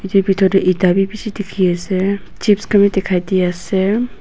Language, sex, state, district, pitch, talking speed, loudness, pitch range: Nagamese, female, Nagaland, Dimapur, 195 Hz, 185 wpm, -16 LUFS, 185-205 Hz